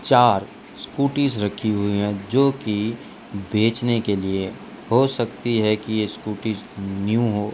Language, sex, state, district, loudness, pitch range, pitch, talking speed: Hindi, male, Rajasthan, Bikaner, -21 LUFS, 100-120 Hz, 110 Hz, 135 wpm